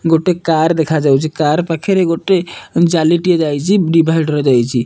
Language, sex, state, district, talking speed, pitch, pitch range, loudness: Odia, male, Odisha, Nuapada, 150 wpm, 165 Hz, 155-175 Hz, -14 LUFS